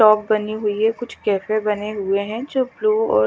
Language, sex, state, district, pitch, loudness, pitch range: Hindi, female, Chandigarh, Chandigarh, 215 Hz, -20 LUFS, 210-250 Hz